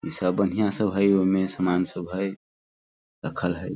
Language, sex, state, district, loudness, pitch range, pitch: Hindi, male, Bihar, Sitamarhi, -25 LUFS, 90-100 Hz, 95 Hz